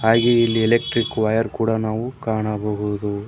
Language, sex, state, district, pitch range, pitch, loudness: Kannada, male, Karnataka, Koppal, 105-115 Hz, 110 Hz, -20 LUFS